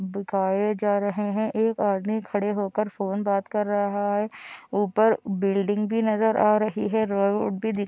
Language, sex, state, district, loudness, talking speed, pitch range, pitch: Hindi, female, Andhra Pradesh, Anantapur, -24 LUFS, 185 wpm, 200-215 Hz, 205 Hz